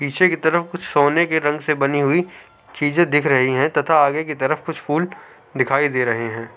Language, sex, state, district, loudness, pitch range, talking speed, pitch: Hindi, male, Uttar Pradesh, Hamirpur, -18 LUFS, 135-165 Hz, 200 wpm, 150 Hz